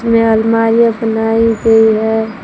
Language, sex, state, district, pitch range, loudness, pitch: Hindi, female, Jharkhand, Palamu, 220-230 Hz, -11 LUFS, 225 Hz